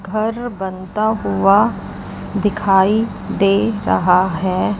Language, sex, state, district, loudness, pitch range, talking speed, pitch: Hindi, female, Chandigarh, Chandigarh, -17 LUFS, 190-215 Hz, 90 wpm, 200 Hz